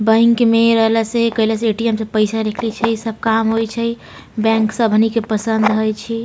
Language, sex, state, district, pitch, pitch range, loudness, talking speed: Maithili, female, Bihar, Samastipur, 225 Hz, 220-230 Hz, -16 LUFS, 230 wpm